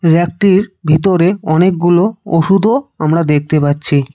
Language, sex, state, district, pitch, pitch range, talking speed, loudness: Bengali, male, West Bengal, Cooch Behar, 170 Hz, 155-195 Hz, 100 wpm, -12 LUFS